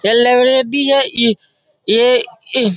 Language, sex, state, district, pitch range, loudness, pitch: Hindi, female, Bihar, Darbhanga, 240-305 Hz, -12 LUFS, 260 Hz